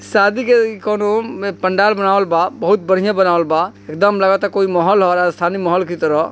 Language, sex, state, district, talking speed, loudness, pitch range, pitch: Bhojpuri, male, Bihar, East Champaran, 200 wpm, -15 LUFS, 175-205 Hz, 195 Hz